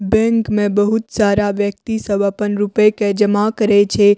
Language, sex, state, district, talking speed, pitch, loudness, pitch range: Maithili, female, Bihar, Madhepura, 170 wpm, 205 Hz, -16 LUFS, 205-215 Hz